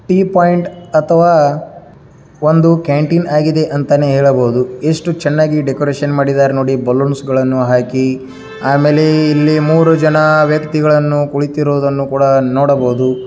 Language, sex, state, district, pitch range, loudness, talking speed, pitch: Kannada, male, Karnataka, Dharwad, 135-155 Hz, -12 LUFS, 110 wpm, 145 Hz